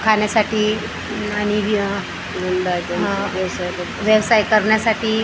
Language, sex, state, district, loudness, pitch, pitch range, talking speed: Marathi, female, Maharashtra, Gondia, -19 LUFS, 210 Hz, 200-220 Hz, 90 wpm